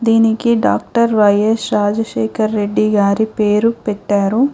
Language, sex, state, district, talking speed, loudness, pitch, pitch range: Telugu, female, Telangana, Hyderabad, 105 wpm, -15 LUFS, 215 Hz, 210-225 Hz